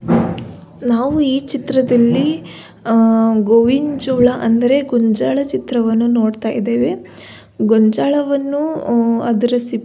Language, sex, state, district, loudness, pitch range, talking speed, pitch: Kannada, female, Karnataka, Belgaum, -15 LUFS, 225-270 Hz, 90 wpm, 240 Hz